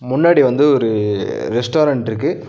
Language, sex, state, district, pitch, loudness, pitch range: Tamil, male, Tamil Nadu, Nilgiris, 125 Hz, -15 LUFS, 115-145 Hz